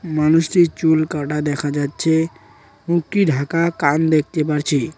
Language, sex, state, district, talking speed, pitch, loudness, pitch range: Bengali, male, West Bengal, Cooch Behar, 120 wpm, 155 Hz, -18 LUFS, 145-165 Hz